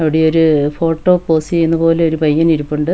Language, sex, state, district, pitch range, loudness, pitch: Malayalam, female, Kerala, Wayanad, 155-165 Hz, -13 LUFS, 160 Hz